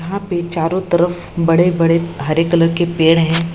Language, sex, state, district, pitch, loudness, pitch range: Hindi, female, Bihar, Lakhisarai, 170 Hz, -15 LUFS, 165-175 Hz